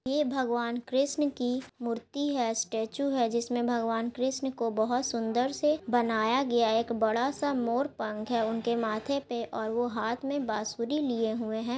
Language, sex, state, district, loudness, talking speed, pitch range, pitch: Hindi, female, Bihar, Gaya, -30 LUFS, 170 wpm, 225-265 Hz, 240 Hz